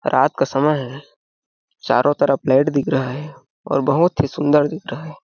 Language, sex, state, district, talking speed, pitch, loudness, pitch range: Hindi, male, Chhattisgarh, Balrampur, 195 wpm, 140 Hz, -18 LUFS, 135-150 Hz